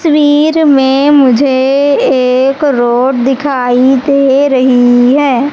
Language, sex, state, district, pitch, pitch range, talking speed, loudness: Hindi, female, Madhya Pradesh, Katni, 270 Hz, 255-285 Hz, 100 wpm, -8 LUFS